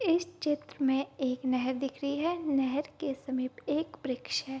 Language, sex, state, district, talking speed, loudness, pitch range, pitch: Hindi, female, Bihar, Kishanganj, 180 wpm, -32 LUFS, 265-295 Hz, 275 Hz